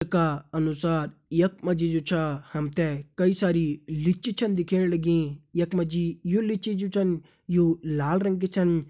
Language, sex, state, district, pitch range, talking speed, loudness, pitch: Hindi, male, Uttarakhand, Uttarkashi, 160-185 Hz, 180 wpm, -26 LUFS, 170 Hz